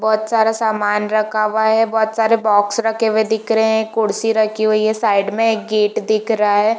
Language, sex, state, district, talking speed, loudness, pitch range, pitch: Hindi, female, Jharkhand, Jamtara, 220 wpm, -16 LUFS, 215-225 Hz, 220 Hz